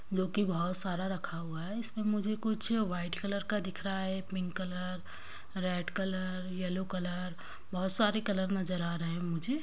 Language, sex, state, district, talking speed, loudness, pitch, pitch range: Hindi, female, Bihar, Kishanganj, 185 wpm, -35 LUFS, 185 Hz, 180-200 Hz